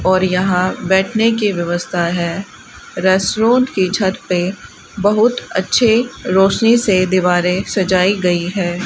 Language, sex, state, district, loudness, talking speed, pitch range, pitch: Hindi, female, Rajasthan, Bikaner, -15 LUFS, 120 wpm, 180-210 Hz, 190 Hz